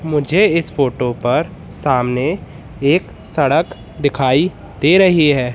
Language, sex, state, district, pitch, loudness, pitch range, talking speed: Hindi, male, Madhya Pradesh, Katni, 140 Hz, -16 LUFS, 125-160 Hz, 120 wpm